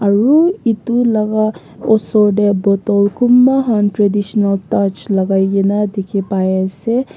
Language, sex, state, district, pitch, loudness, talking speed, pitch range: Nagamese, female, Nagaland, Kohima, 205 Hz, -14 LUFS, 125 wpm, 195-225 Hz